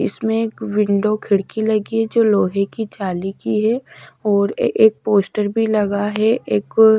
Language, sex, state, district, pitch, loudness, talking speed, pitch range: Hindi, female, Odisha, Sambalpur, 215 Hz, -18 LUFS, 165 wpm, 200-220 Hz